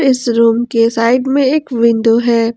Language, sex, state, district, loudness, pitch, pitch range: Hindi, female, Jharkhand, Ranchi, -12 LUFS, 235 Hz, 230-255 Hz